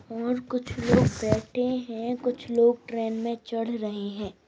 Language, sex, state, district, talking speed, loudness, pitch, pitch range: Hindi, female, Goa, North and South Goa, 175 wpm, -27 LUFS, 235 Hz, 225-245 Hz